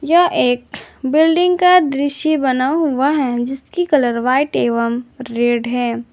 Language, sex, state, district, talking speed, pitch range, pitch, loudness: Hindi, female, Jharkhand, Garhwa, 135 wpm, 245-310 Hz, 270 Hz, -16 LUFS